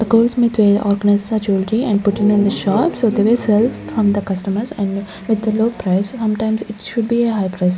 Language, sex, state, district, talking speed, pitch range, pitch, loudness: English, female, Chandigarh, Chandigarh, 245 wpm, 200-230 Hz, 210 Hz, -17 LUFS